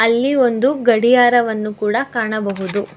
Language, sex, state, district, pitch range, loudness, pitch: Kannada, female, Karnataka, Bangalore, 215-245 Hz, -16 LUFS, 235 Hz